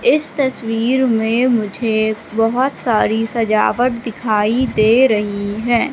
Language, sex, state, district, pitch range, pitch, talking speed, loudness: Hindi, female, Madhya Pradesh, Katni, 220-250 Hz, 230 Hz, 110 wpm, -16 LUFS